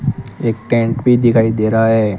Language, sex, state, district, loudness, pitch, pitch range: Hindi, male, Rajasthan, Bikaner, -14 LUFS, 115 Hz, 110-120 Hz